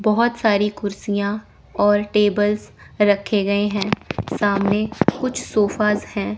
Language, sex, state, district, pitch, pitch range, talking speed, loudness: Hindi, female, Chandigarh, Chandigarh, 205 Hz, 205-210 Hz, 115 wpm, -20 LUFS